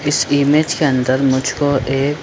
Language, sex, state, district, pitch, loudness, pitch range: Hindi, male, Chhattisgarh, Bilaspur, 140 Hz, -15 LUFS, 130-145 Hz